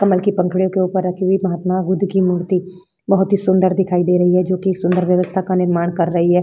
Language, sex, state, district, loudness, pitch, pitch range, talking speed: Hindi, female, Bihar, Vaishali, -17 LUFS, 185 Hz, 180-190 Hz, 250 wpm